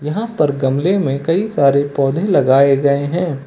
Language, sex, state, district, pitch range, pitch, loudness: Hindi, male, Uttar Pradesh, Lucknow, 140-175 Hz, 145 Hz, -15 LUFS